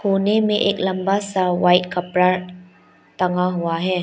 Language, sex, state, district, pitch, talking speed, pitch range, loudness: Hindi, female, Arunachal Pradesh, Lower Dibang Valley, 180 Hz, 150 wpm, 180-195 Hz, -19 LUFS